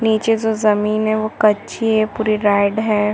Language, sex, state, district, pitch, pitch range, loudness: Hindi, female, Chhattisgarh, Bastar, 215 Hz, 210-220 Hz, -17 LUFS